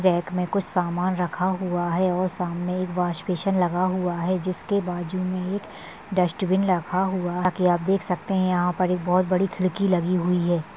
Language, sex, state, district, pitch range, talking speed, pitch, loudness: Hindi, female, Maharashtra, Solapur, 180-185 Hz, 210 wpm, 180 Hz, -24 LUFS